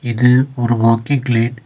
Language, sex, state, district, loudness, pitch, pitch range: Tamil, male, Tamil Nadu, Nilgiris, -15 LUFS, 120 Hz, 115-125 Hz